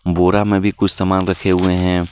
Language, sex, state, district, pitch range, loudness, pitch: Hindi, male, Jharkhand, Deoghar, 90-100 Hz, -16 LUFS, 95 Hz